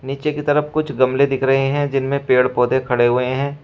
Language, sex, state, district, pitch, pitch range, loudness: Hindi, male, Uttar Pradesh, Shamli, 135 Hz, 130-145 Hz, -18 LUFS